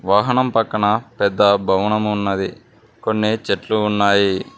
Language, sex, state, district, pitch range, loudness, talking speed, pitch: Telugu, male, Telangana, Mahabubabad, 100-110 Hz, -18 LUFS, 105 wpm, 105 Hz